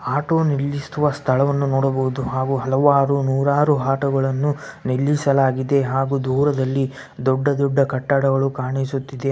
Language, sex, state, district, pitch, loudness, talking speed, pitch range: Kannada, male, Karnataka, Bellary, 135 Hz, -20 LUFS, 95 wpm, 135-140 Hz